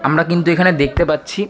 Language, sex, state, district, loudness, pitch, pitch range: Bengali, male, West Bengal, Kolkata, -15 LUFS, 170 Hz, 155-180 Hz